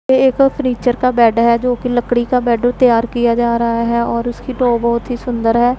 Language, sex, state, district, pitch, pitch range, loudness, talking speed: Hindi, female, Punjab, Pathankot, 240 Hz, 235-250 Hz, -15 LUFS, 240 wpm